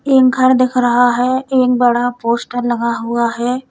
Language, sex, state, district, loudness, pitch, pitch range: Hindi, female, Uttar Pradesh, Lalitpur, -14 LUFS, 245 Hz, 240-255 Hz